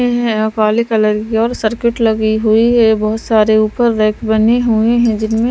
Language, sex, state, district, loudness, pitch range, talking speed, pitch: Hindi, female, Maharashtra, Washim, -13 LUFS, 215-235 Hz, 165 wpm, 220 Hz